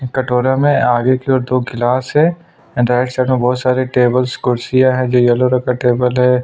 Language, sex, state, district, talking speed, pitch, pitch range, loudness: Hindi, male, Chhattisgarh, Sukma, 215 wpm, 125 Hz, 125-130 Hz, -14 LUFS